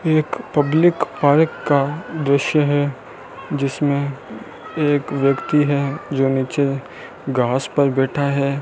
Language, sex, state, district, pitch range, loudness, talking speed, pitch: Hindi, male, Rajasthan, Bikaner, 135-150 Hz, -19 LUFS, 110 wpm, 140 Hz